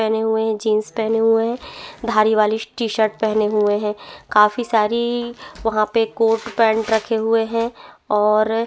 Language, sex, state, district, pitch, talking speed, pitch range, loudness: Hindi, female, Chhattisgarh, Bastar, 220 Hz, 160 wpm, 215-230 Hz, -19 LUFS